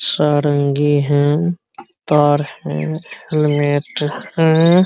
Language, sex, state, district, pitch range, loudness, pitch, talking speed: Hindi, male, Bihar, Araria, 145-160 Hz, -16 LUFS, 145 Hz, 85 wpm